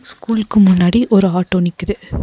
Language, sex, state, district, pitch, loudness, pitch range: Tamil, female, Tamil Nadu, Nilgiris, 190 Hz, -14 LUFS, 180-215 Hz